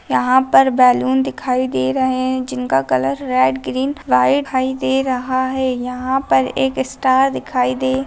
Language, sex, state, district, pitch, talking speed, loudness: Hindi, female, Bihar, Darbhanga, 255 Hz, 165 wpm, -17 LUFS